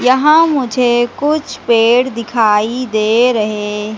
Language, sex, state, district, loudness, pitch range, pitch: Hindi, female, Madhya Pradesh, Katni, -13 LUFS, 215-255 Hz, 240 Hz